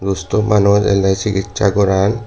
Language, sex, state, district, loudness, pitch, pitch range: Chakma, male, Tripura, Dhalai, -15 LUFS, 100 Hz, 95-105 Hz